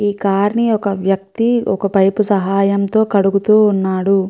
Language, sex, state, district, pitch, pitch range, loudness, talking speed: Telugu, female, Andhra Pradesh, Chittoor, 200 Hz, 195-210 Hz, -15 LUFS, 140 wpm